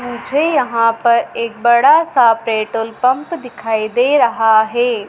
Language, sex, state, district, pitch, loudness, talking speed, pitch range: Hindi, female, Madhya Pradesh, Dhar, 235 Hz, -14 LUFS, 140 wpm, 225-255 Hz